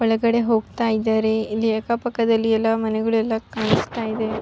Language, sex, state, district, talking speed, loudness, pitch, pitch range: Kannada, female, Karnataka, Raichur, 165 wpm, -21 LUFS, 225 Hz, 220-230 Hz